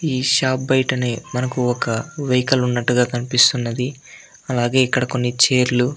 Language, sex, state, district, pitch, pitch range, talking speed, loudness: Telugu, male, Andhra Pradesh, Anantapur, 125 Hz, 125-130 Hz, 130 wpm, -18 LUFS